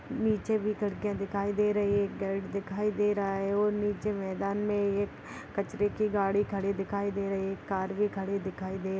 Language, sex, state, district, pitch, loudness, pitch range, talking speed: Hindi, female, Bihar, Muzaffarpur, 200 Hz, -31 LUFS, 195-210 Hz, 220 wpm